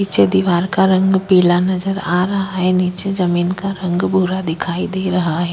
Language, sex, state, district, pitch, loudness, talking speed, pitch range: Hindi, female, Uttar Pradesh, Jyotiba Phule Nagar, 185 Hz, -16 LUFS, 195 wpm, 175-190 Hz